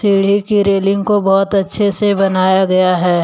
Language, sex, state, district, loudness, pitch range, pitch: Hindi, male, Jharkhand, Deoghar, -13 LUFS, 190-205 Hz, 195 Hz